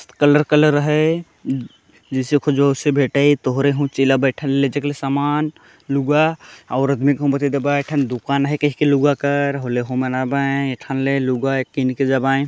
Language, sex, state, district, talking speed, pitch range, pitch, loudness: Chhattisgarhi, male, Chhattisgarh, Jashpur, 165 wpm, 135-145 Hz, 140 Hz, -18 LUFS